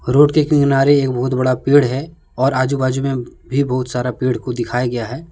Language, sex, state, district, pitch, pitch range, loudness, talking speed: Hindi, male, Jharkhand, Deoghar, 130 Hz, 125-140 Hz, -17 LUFS, 215 wpm